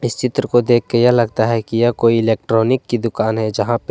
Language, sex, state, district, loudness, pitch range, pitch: Hindi, male, Jharkhand, Deoghar, -16 LUFS, 115-120 Hz, 115 Hz